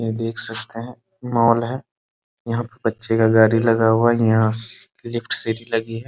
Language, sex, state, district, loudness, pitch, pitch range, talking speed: Hindi, male, Bihar, Muzaffarpur, -18 LUFS, 115 Hz, 115-120 Hz, 215 wpm